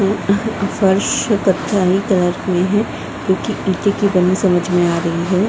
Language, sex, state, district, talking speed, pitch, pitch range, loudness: Hindi, female, Bihar, Saharsa, 165 wpm, 190 Hz, 180-200 Hz, -16 LUFS